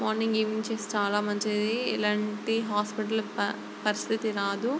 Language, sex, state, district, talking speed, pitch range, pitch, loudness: Telugu, female, Andhra Pradesh, Chittoor, 125 wpm, 210-220 Hz, 215 Hz, -29 LUFS